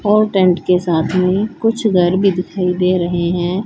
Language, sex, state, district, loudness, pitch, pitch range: Hindi, female, Haryana, Charkhi Dadri, -15 LUFS, 180 Hz, 180-200 Hz